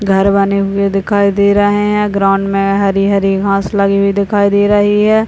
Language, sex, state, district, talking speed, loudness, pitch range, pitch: Hindi, male, Bihar, Purnia, 160 wpm, -12 LUFS, 195-205 Hz, 200 Hz